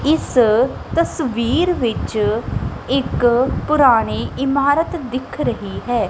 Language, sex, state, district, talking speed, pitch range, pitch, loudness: Punjabi, female, Punjab, Kapurthala, 90 wpm, 235-305 Hz, 260 Hz, -18 LUFS